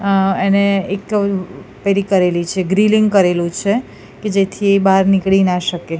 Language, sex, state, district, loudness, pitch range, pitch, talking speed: Gujarati, female, Gujarat, Gandhinagar, -15 LUFS, 185-200 Hz, 195 Hz, 150 wpm